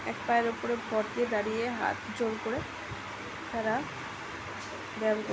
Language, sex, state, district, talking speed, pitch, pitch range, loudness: Bengali, female, West Bengal, Jhargram, 145 wpm, 230 Hz, 215-240 Hz, -33 LUFS